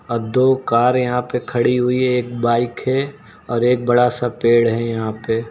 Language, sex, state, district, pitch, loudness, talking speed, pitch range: Hindi, male, Uttar Pradesh, Lucknow, 120 Hz, -18 LUFS, 205 wpm, 115-125 Hz